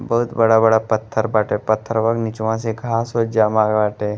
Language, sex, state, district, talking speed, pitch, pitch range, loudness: Bhojpuri, male, Uttar Pradesh, Gorakhpur, 170 wpm, 110 Hz, 110-115 Hz, -18 LUFS